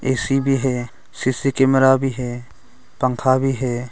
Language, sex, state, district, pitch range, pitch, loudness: Hindi, male, Arunachal Pradesh, Longding, 125-135 Hz, 130 Hz, -19 LUFS